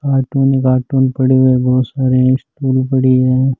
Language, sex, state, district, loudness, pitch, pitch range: Rajasthani, male, Rajasthan, Churu, -13 LUFS, 130 Hz, 130-135 Hz